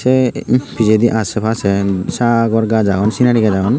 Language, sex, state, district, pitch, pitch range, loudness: Chakma, male, Tripura, Unakoti, 110 Hz, 105-120 Hz, -14 LUFS